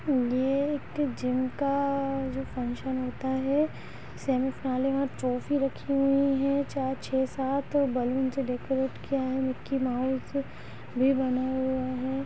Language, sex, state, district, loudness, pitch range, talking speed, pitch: Hindi, female, Bihar, Muzaffarpur, -29 LUFS, 260-275 Hz, 140 wpm, 265 Hz